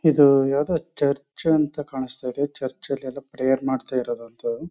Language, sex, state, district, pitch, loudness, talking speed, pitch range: Kannada, male, Karnataka, Chamarajanagar, 140 Hz, -23 LUFS, 165 wpm, 130-145 Hz